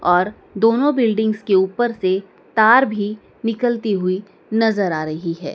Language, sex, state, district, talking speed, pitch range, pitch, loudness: Hindi, female, Madhya Pradesh, Dhar, 150 wpm, 185-225 Hz, 215 Hz, -18 LUFS